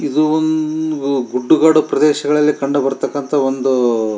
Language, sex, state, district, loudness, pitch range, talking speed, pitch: Kannada, male, Karnataka, Shimoga, -15 LUFS, 135-155 Hz, 130 wpm, 145 Hz